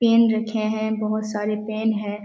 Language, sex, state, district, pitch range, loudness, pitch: Hindi, female, Bihar, Jamui, 215-220 Hz, -23 LUFS, 215 Hz